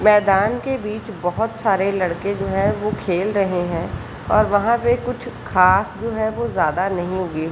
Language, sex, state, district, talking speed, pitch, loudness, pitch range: Hindi, female, Jharkhand, Sahebganj, 190 wpm, 200 Hz, -20 LUFS, 185-220 Hz